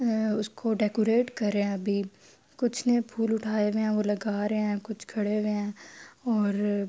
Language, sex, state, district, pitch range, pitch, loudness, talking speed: Urdu, female, Andhra Pradesh, Anantapur, 205-225 Hz, 215 Hz, -28 LUFS, 190 wpm